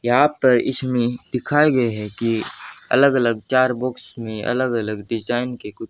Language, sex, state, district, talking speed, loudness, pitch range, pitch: Hindi, male, Haryana, Jhajjar, 175 wpm, -20 LUFS, 115-130 Hz, 120 Hz